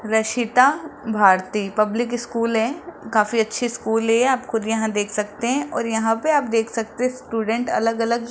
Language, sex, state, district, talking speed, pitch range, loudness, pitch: Hindi, male, Rajasthan, Jaipur, 180 wpm, 220-245 Hz, -21 LUFS, 225 Hz